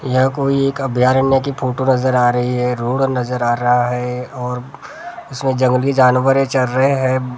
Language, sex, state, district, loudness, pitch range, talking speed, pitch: Hindi, male, Maharashtra, Gondia, -16 LUFS, 125-135 Hz, 185 wpm, 130 Hz